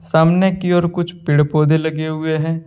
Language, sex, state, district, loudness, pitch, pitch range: Hindi, male, Jharkhand, Deoghar, -16 LUFS, 160 Hz, 155-175 Hz